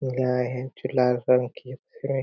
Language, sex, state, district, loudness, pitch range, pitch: Hindi, male, Chhattisgarh, Korba, -25 LUFS, 125-130 Hz, 125 Hz